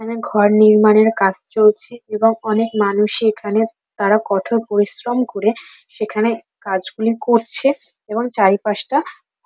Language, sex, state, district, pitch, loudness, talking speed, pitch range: Bengali, female, West Bengal, Dakshin Dinajpur, 220 Hz, -17 LUFS, 115 wpm, 210-230 Hz